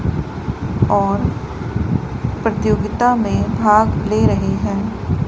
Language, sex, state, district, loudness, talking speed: Hindi, male, Rajasthan, Bikaner, -18 LUFS, 80 wpm